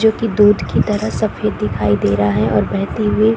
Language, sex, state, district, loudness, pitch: Hindi, female, Chhattisgarh, Korba, -16 LUFS, 180 Hz